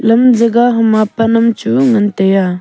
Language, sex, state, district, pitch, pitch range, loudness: Wancho, female, Arunachal Pradesh, Longding, 225 Hz, 210-235 Hz, -11 LUFS